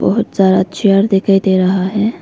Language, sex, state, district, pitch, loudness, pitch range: Hindi, female, Arunachal Pradesh, Lower Dibang Valley, 195 Hz, -13 LUFS, 190-200 Hz